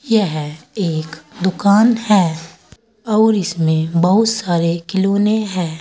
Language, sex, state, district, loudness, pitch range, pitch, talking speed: Hindi, female, Uttar Pradesh, Saharanpur, -16 LUFS, 165-215 Hz, 190 Hz, 105 wpm